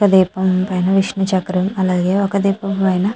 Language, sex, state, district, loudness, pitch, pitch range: Telugu, female, Andhra Pradesh, Chittoor, -17 LUFS, 190 Hz, 185-195 Hz